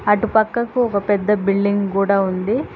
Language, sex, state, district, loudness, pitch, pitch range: Telugu, female, Telangana, Hyderabad, -18 LUFS, 205 Hz, 200-225 Hz